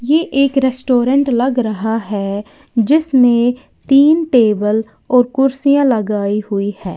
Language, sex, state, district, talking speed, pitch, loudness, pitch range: Hindi, female, Uttar Pradesh, Lalitpur, 120 wpm, 245 Hz, -14 LUFS, 215-275 Hz